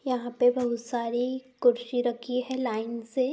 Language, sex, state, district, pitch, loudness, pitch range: Bhojpuri, female, Bihar, Saran, 245 Hz, -28 LUFS, 240-255 Hz